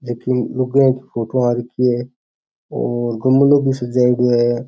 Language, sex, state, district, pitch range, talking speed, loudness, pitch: Rajasthani, male, Rajasthan, Churu, 120-130 Hz, 140 wpm, -17 LUFS, 125 Hz